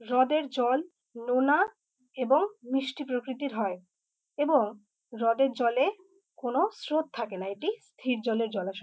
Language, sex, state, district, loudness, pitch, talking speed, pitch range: Bengali, female, West Bengal, North 24 Parganas, -29 LUFS, 255 Hz, 130 wpm, 230-290 Hz